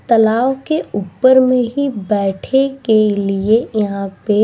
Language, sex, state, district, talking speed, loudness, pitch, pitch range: Bhojpuri, female, Bihar, East Champaran, 160 wpm, -15 LUFS, 220 Hz, 205-260 Hz